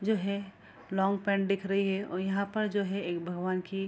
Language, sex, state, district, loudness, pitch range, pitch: Hindi, female, Bihar, Kishanganj, -31 LUFS, 190-200 Hz, 195 Hz